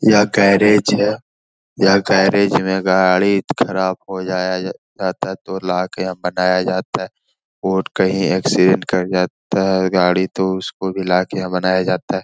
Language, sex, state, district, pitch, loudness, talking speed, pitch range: Hindi, male, Bihar, Lakhisarai, 95 Hz, -17 LUFS, 165 wpm, 90-95 Hz